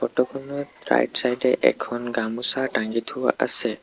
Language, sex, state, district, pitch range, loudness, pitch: Assamese, male, Assam, Sonitpur, 115-130 Hz, -23 LUFS, 120 Hz